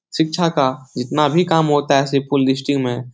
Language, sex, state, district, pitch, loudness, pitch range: Hindi, male, Bihar, Supaul, 140 Hz, -17 LUFS, 130-150 Hz